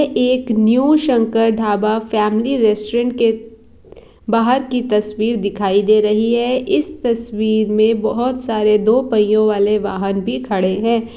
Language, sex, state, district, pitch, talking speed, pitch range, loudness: Hindi, female, Bihar, East Champaran, 225 Hz, 140 wpm, 210-240 Hz, -16 LUFS